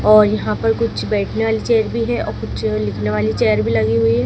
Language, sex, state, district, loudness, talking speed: Hindi, female, Madhya Pradesh, Dhar, -17 LUFS, 255 wpm